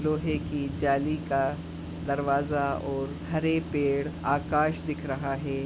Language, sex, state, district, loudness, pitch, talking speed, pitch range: Hindi, female, Goa, North and South Goa, -29 LUFS, 140 Hz, 125 wpm, 135-150 Hz